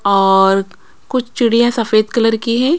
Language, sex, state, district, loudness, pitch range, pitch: Hindi, female, Punjab, Kapurthala, -14 LUFS, 200-240 Hz, 230 Hz